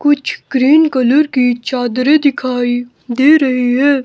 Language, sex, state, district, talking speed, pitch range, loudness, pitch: Hindi, male, Himachal Pradesh, Shimla, 135 wpm, 250-285 Hz, -13 LUFS, 260 Hz